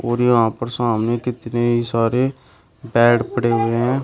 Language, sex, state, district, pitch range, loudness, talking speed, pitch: Hindi, male, Uttar Pradesh, Shamli, 115-125 Hz, -18 LUFS, 150 wpm, 120 Hz